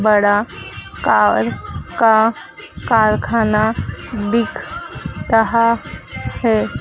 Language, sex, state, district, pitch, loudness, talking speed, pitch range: Hindi, female, Madhya Pradesh, Dhar, 220 Hz, -16 LUFS, 60 wpm, 215-230 Hz